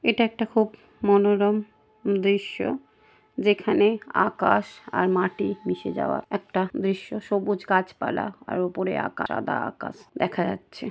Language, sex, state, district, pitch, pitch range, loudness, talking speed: Bengali, female, West Bengal, Dakshin Dinajpur, 205 Hz, 195-215 Hz, -25 LUFS, 120 wpm